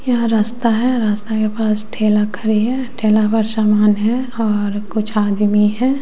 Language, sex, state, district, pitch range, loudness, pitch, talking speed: Hindi, female, Bihar, West Champaran, 210-230 Hz, -16 LUFS, 215 Hz, 170 wpm